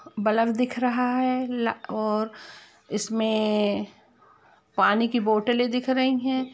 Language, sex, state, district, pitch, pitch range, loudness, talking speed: Hindi, female, Jharkhand, Jamtara, 235 Hz, 215-255 Hz, -25 LUFS, 110 wpm